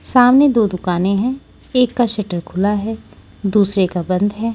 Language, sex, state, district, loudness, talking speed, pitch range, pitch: Hindi, female, Maharashtra, Washim, -16 LUFS, 170 wpm, 185-240 Hz, 210 Hz